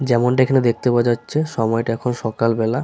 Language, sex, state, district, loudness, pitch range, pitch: Bengali, male, West Bengal, Paschim Medinipur, -19 LUFS, 115-125 Hz, 120 Hz